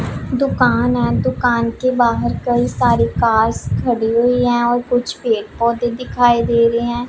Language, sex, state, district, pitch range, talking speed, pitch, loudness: Hindi, female, Punjab, Pathankot, 230-245 Hz, 160 wpm, 235 Hz, -16 LUFS